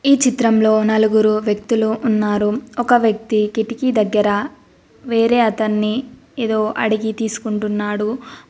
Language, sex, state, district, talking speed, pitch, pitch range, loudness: Telugu, female, Telangana, Mahabubabad, 100 wpm, 220 Hz, 215-235 Hz, -17 LUFS